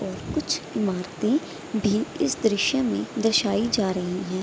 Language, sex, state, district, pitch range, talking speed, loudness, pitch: Hindi, female, Bihar, Gopalganj, 190-225 Hz, 150 wpm, -25 LUFS, 210 Hz